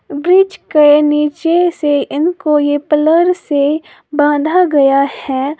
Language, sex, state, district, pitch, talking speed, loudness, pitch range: Hindi, female, Uttar Pradesh, Lalitpur, 300 Hz, 120 wpm, -13 LUFS, 290-335 Hz